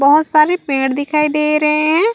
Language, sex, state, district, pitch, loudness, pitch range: Chhattisgarhi, female, Chhattisgarh, Raigarh, 300 Hz, -14 LUFS, 295-310 Hz